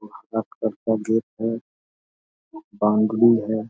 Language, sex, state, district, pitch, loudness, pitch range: Hindi, male, Bihar, Darbhanga, 110 Hz, -22 LUFS, 110-115 Hz